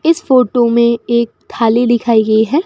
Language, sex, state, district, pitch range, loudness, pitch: Hindi, female, Rajasthan, Bikaner, 230-250 Hz, -12 LUFS, 235 Hz